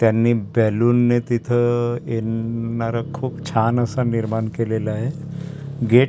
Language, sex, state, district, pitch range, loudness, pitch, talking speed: Marathi, male, Maharashtra, Gondia, 115-125 Hz, -21 LUFS, 120 Hz, 130 wpm